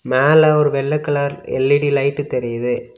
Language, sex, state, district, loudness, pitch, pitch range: Tamil, male, Tamil Nadu, Kanyakumari, -16 LUFS, 140 Hz, 130-150 Hz